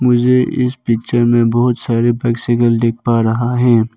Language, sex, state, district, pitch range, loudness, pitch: Hindi, male, Arunachal Pradesh, Papum Pare, 115-125 Hz, -14 LUFS, 120 Hz